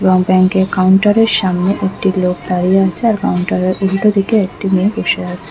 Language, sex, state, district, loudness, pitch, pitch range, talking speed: Bengali, female, West Bengal, Kolkata, -13 LUFS, 190 Hz, 185-195 Hz, 195 wpm